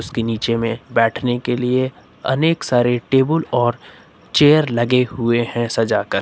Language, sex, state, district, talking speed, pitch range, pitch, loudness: Hindi, male, Uttar Pradesh, Lucknow, 155 wpm, 115-130 Hz, 120 Hz, -18 LUFS